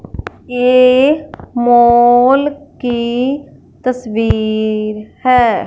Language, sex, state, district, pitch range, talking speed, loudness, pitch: Hindi, female, Punjab, Fazilka, 235-255 Hz, 55 wpm, -13 LUFS, 245 Hz